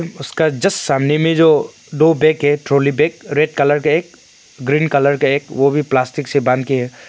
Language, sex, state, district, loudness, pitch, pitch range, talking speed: Hindi, male, Arunachal Pradesh, Longding, -15 LUFS, 145 Hz, 140-155 Hz, 210 wpm